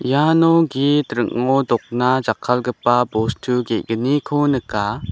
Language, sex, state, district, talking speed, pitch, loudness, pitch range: Garo, male, Meghalaya, West Garo Hills, 95 wpm, 125 Hz, -18 LUFS, 120-145 Hz